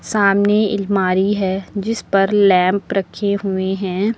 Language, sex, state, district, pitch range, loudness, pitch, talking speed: Hindi, female, Uttar Pradesh, Lucknow, 190-205 Hz, -17 LUFS, 195 Hz, 130 wpm